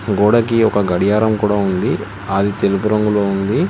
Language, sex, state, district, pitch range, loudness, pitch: Telugu, male, Telangana, Hyderabad, 100-110 Hz, -16 LUFS, 105 Hz